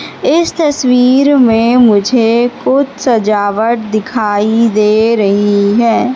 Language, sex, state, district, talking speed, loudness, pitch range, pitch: Hindi, female, Madhya Pradesh, Katni, 95 wpm, -10 LUFS, 215-255 Hz, 230 Hz